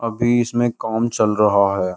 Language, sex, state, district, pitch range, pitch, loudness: Hindi, male, Uttar Pradesh, Jyotiba Phule Nagar, 105-120 Hz, 110 Hz, -18 LUFS